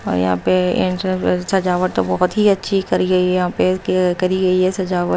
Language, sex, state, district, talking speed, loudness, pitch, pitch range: Hindi, female, Maharashtra, Mumbai Suburban, 185 wpm, -17 LUFS, 185 Hz, 180-185 Hz